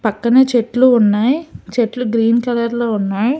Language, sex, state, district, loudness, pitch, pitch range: Telugu, female, Telangana, Hyderabad, -15 LUFS, 235 Hz, 225-245 Hz